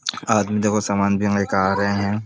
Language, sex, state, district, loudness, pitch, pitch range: Hindi, male, Uttar Pradesh, Budaun, -20 LUFS, 100 Hz, 100-105 Hz